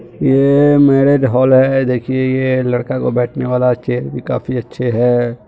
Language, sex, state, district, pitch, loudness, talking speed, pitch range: Hindi, male, Bihar, Muzaffarpur, 130 Hz, -14 LUFS, 175 wpm, 125-135 Hz